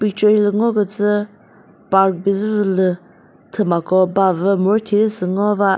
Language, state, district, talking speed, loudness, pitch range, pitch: Chakhesang, Nagaland, Dimapur, 155 wpm, -17 LUFS, 190-210 Hz, 200 Hz